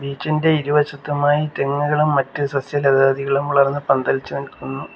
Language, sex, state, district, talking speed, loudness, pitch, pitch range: Malayalam, male, Kerala, Kollam, 110 wpm, -19 LUFS, 145 Hz, 140-150 Hz